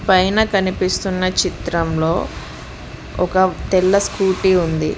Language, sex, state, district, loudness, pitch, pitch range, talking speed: Telugu, female, Telangana, Mahabubabad, -17 LUFS, 185 Hz, 165-190 Hz, 85 wpm